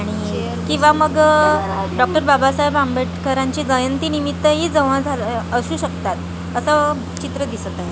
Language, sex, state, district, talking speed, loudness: Marathi, female, Maharashtra, Gondia, 120 wpm, -18 LUFS